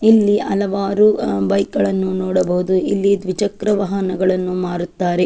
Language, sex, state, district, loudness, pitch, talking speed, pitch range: Kannada, female, Karnataka, Chamarajanagar, -17 LUFS, 190 Hz, 105 wpm, 180-200 Hz